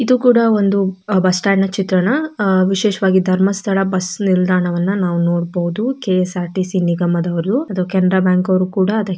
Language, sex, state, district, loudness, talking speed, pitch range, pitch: Kannada, female, Karnataka, Dakshina Kannada, -16 LUFS, 135 wpm, 180-200 Hz, 190 Hz